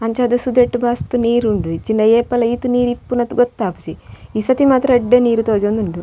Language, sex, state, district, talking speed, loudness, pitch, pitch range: Tulu, female, Karnataka, Dakshina Kannada, 170 wpm, -16 LUFS, 240 Hz, 220-245 Hz